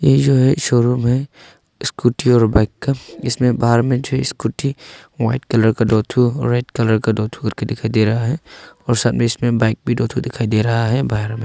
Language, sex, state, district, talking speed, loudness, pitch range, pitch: Hindi, male, Arunachal Pradesh, Longding, 220 wpm, -17 LUFS, 110-130 Hz, 120 Hz